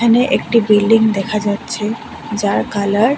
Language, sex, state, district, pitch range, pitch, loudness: Bengali, female, Tripura, West Tripura, 205-230 Hz, 220 Hz, -15 LUFS